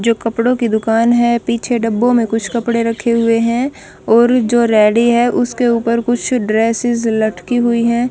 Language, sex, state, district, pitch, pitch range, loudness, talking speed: Hindi, female, Bihar, Patna, 235 Hz, 230-240 Hz, -14 LUFS, 175 wpm